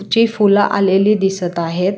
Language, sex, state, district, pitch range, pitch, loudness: Marathi, female, Maharashtra, Solapur, 185-205 Hz, 195 Hz, -15 LUFS